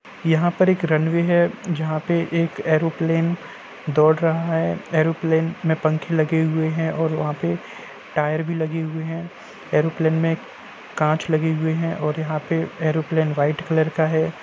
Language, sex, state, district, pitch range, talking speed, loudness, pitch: Hindi, male, Uttar Pradesh, Jalaun, 155-165 Hz, 175 wpm, -21 LUFS, 160 Hz